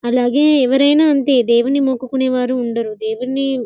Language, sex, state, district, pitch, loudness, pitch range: Telugu, female, Telangana, Karimnagar, 255 Hz, -15 LUFS, 245-275 Hz